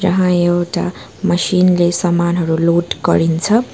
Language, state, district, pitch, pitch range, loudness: Nepali, West Bengal, Darjeeling, 175 Hz, 170-180 Hz, -15 LUFS